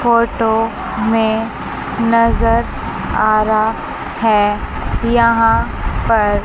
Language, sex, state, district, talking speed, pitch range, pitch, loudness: Hindi, female, Chandigarh, Chandigarh, 75 wpm, 215-230 Hz, 225 Hz, -15 LUFS